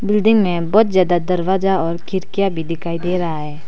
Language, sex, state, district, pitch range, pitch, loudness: Hindi, female, Arunachal Pradesh, Papum Pare, 170-195 Hz, 180 Hz, -17 LUFS